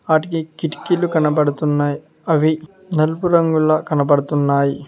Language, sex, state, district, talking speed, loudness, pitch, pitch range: Telugu, male, Telangana, Mahabubabad, 85 wpm, -18 LUFS, 155 Hz, 145-160 Hz